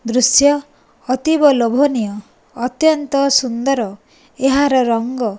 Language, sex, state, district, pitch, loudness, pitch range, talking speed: Odia, female, Odisha, Nuapada, 260 Hz, -15 LUFS, 235-285 Hz, 90 wpm